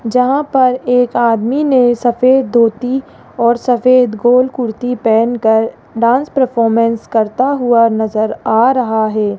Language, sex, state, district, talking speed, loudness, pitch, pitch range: Hindi, female, Rajasthan, Jaipur, 130 wpm, -13 LUFS, 240 Hz, 225-255 Hz